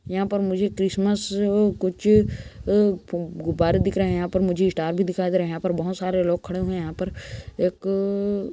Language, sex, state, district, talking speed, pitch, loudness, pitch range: Hindi, male, Chhattisgarh, Kabirdham, 225 wpm, 185 Hz, -23 LUFS, 175-200 Hz